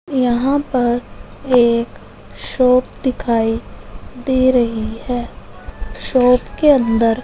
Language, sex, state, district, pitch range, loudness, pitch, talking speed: Hindi, male, Punjab, Fazilka, 235-260 Hz, -16 LUFS, 250 Hz, 90 wpm